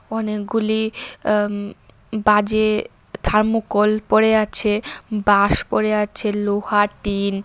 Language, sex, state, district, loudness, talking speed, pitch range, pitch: Bengali, female, Tripura, West Tripura, -19 LUFS, 105 wpm, 205-215 Hz, 210 Hz